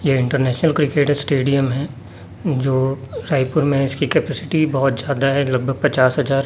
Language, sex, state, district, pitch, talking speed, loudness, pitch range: Hindi, male, Chhattisgarh, Raipur, 135 Hz, 160 wpm, -18 LUFS, 130-145 Hz